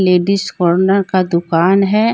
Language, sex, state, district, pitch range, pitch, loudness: Hindi, female, Jharkhand, Deoghar, 175-195 Hz, 185 Hz, -14 LUFS